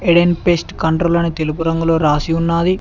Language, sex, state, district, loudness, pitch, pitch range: Telugu, male, Telangana, Mahabubabad, -16 LUFS, 165 Hz, 160-170 Hz